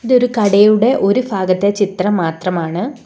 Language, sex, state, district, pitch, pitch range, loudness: Malayalam, female, Kerala, Kollam, 200 Hz, 185-235 Hz, -14 LUFS